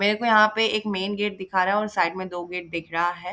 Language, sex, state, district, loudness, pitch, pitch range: Hindi, female, Bihar, Jahanabad, -23 LUFS, 190 Hz, 180-210 Hz